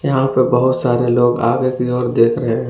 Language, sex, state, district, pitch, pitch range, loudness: Hindi, male, Jharkhand, Palamu, 125 Hz, 120-130 Hz, -15 LUFS